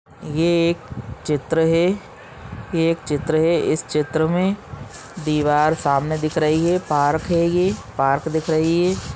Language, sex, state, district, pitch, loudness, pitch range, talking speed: Hindi, male, Chhattisgarh, Bastar, 160 Hz, -20 LUFS, 150-170 Hz, 150 wpm